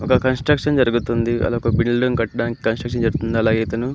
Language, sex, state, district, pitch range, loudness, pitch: Telugu, male, Andhra Pradesh, Anantapur, 115-130 Hz, -19 LUFS, 120 Hz